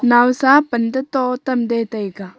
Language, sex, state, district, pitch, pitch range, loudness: Wancho, female, Arunachal Pradesh, Longding, 245 Hz, 230-260 Hz, -17 LUFS